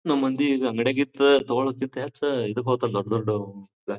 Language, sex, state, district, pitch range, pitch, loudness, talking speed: Kannada, male, Karnataka, Bijapur, 105-140 Hz, 130 Hz, -24 LUFS, 150 wpm